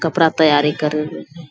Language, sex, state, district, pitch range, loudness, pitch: Angika, female, Bihar, Bhagalpur, 150-165 Hz, -16 LUFS, 155 Hz